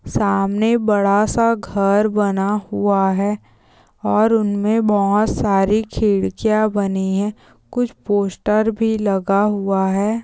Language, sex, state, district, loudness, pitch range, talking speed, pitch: Hindi, female, Uttar Pradesh, Gorakhpur, -18 LUFS, 195-215 Hz, 115 wpm, 205 Hz